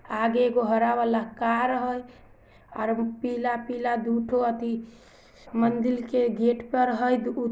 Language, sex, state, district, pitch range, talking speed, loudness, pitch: Maithili, female, Bihar, Samastipur, 230-245 Hz, 120 wpm, -26 LUFS, 240 Hz